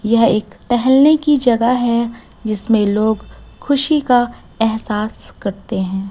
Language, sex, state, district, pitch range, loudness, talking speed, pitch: Hindi, female, Chhattisgarh, Raipur, 215-245 Hz, -16 LUFS, 130 wpm, 230 Hz